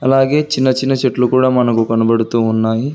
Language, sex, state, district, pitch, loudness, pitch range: Telugu, male, Telangana, Hyderabad, 125 Hz, -14 LUFS, 115-135 Hz